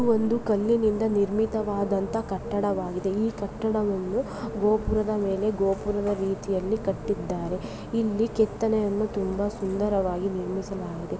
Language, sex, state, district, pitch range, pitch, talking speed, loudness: Kannada, female, Karnataka, Bellary, 195-215 Hz, 205 Hz, 85 wpm, -27 LUFS